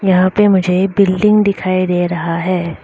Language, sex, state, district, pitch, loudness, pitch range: Hindi, female, Arunachal Pradesh, Lower Dibang Valley, 185 Hz, -14 LUFS, 180-200 Hz